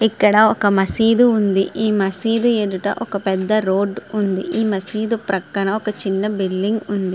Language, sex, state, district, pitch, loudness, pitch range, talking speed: Telugu, female, Andhra Pradesh, Srikakulam, 205 Hz, -18 LUFS, 195-215 Hz, 150 wpm